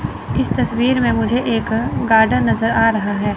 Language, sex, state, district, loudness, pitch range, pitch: Hindi, female, Chandigarh, Chandigarh, -16 LUFS, 200-230 Hz, 225 Hz